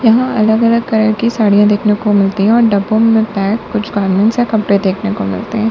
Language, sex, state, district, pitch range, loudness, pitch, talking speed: Hindi, female, Uttar Pradesh, Lalitpur, 205-225 Hz, -12 LUFS, 215 Hz, 230 wpm